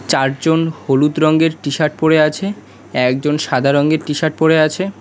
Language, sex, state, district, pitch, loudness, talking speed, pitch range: Bengali, male, West Bengal, Cooch Behar, 155 Hz, -15 LUFS, 145 wpm, 145-160 Hz